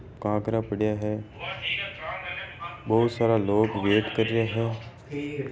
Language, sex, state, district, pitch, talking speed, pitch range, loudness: Marwari, male, Rajasthan, Churu, 110 Hz, 110 wpm, 105-115 Hz, -27 LUFS